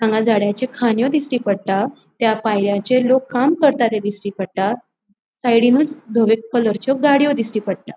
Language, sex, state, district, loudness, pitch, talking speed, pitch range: Konkani, female, Goa, North and South Goa, -18 LUFS, 230 Hz, 145 wpm, 205-255 Hz